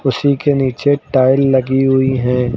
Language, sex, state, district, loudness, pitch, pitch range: Hindi, male, Uttar Pradesh, Lucknow, -14 LUFS, 135 Hz, 130-140 Hz